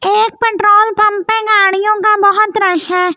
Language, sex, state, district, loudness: Hindi, female, Delhi, New Delhi, -11 LUFS